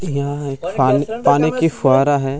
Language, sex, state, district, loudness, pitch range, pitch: Hindi, male, Bihar, Gaya, -17 LUFS, 135-160 Hz, 145 Hz